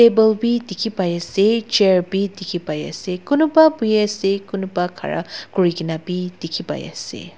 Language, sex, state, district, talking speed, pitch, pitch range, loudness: Nagamese, female, Nagaland, Dimapur, 170 wpm, 195 Hz, 180-220 Hz, -19 LUFS